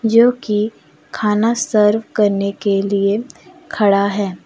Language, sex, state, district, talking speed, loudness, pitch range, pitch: Hindi, female, Jharkhand, Deoghar, 120 wpm, -16 LUFS, 200-225 Hz, 210 Hz